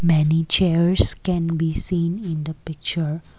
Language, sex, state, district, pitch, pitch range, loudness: English, female, Assam, Kamrup Metropolitan, 165 Hz, 160-175 Hz, -20 LUFS